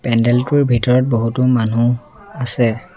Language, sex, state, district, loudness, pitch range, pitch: Assamese, male, Assam, Sonitpur, -16 LUFS, 115-130 Hz, 120 Hz